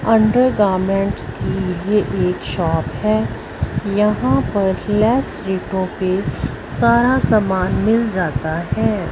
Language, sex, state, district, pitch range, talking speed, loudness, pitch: Hindi, female, Punjab, Fazilka, 155-210 Hz, 110 wpm, -18 LUFS, 190 Hz